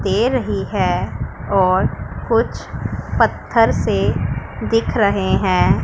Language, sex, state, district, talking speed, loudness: Hindi, female, Punjab, Pathankot, 105 wpm, -18 LUFS